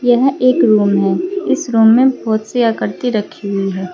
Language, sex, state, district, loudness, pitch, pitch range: Hindi, female, Uttar Pradesh, Saharanpur, -14 LUFS, 225 Hz, 200-250 Hz